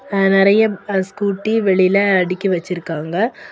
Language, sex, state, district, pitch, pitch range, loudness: Tamil, female, Tamil Nadu, Kanyakumari, 195 Hz, 185-205 Hz, -16 LUFS